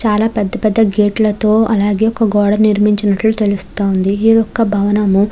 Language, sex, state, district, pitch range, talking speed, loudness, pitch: Telugu, female, Andhra Pradesh, Krishna, 205-220 Hz, 145 wpm, -13 LUFS, 210 Hz